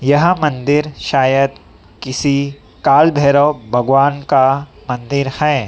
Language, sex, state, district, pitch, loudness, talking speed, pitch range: Hindi, female, Madhya Pradesh, Dhar, 140 Hz, -14 LUFS, 105 wpm, 130-145 Hz